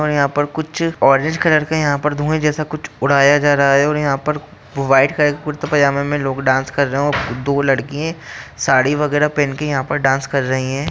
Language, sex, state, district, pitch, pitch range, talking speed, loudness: Hindi, male, Bihar, Jahanabad, 145 Hz, 135-150 Hz, 230 wpm, -16 LUFS